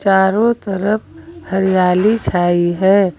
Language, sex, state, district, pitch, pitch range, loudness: Hindi, female, Jharkhand, Garhwa, 190 Hz, 185-215 Hz, -15 LUFS